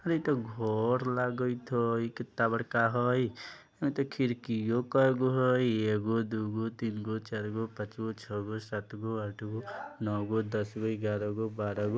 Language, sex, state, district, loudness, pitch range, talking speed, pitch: Bajjika, male, Bihar, Vaishali, -32 LUFS, 110-125 Hz, 130 wpm, 115 Hz